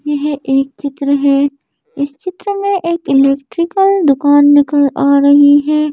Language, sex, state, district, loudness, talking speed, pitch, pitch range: Hindi, female, Madhya Pradesh, Bhopal, -12 LUFS, 140 wpm, 285 Hz, 280-310 Hz